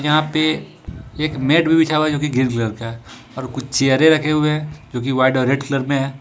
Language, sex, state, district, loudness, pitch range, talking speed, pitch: Hindi, male, Jharkhand, Ranchi, -18 LUFS, 130-155 Hz, 270 wpm, 135 Hz